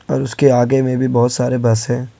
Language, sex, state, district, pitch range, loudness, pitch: Hindi, male, Jharkhand, Ranchi, 120-130 Hz, -15 LUFS, 125 Hz